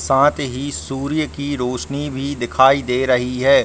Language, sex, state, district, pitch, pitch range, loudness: Hindi, male, Bihar, Gaya, 135 Hz, 125-145 Hz, -19 LUFS